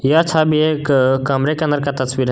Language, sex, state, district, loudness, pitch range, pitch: Hindi, male, Jharkhand, Garhwa, -16 LUFS, 135-155 Hz, 145 Hz